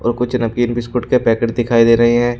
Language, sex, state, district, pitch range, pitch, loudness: Hindi, male, Uttar Pradesh, Shamli, 115-120 Hz, 120 Hz, -15 LUFS